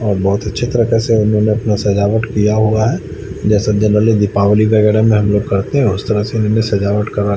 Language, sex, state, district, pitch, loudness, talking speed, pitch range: Hindi, male, Chandigarh, Chandigarh, 105 Hz, -14 LUFS, 205 wpm, 105-110 Hz